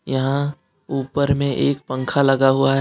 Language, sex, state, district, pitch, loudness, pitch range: Hindi, male, Jharkhand, Deoghar, 135 Hz, -19 LUFS, 135-140 Hz